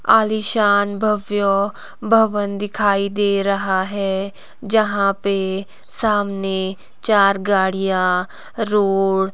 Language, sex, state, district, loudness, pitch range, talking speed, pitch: Hindi, female, Himachal Pradesh, Shimla, -18 LUFS, 195-210 Hz, 90 wpm, 200 Hz